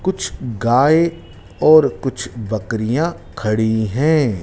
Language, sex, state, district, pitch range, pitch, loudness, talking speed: Hindi, male, Madhya Pradesh, Dhar, 110-155 Hz, 120 Hz, -17 LUFS, 95 wpm